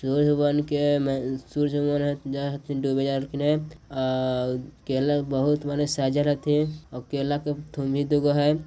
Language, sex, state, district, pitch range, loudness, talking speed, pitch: Magahi, male, Bihar, Jahanabad, 135-145 Hz, -25 LUFS, 90 wpm, 145 Hz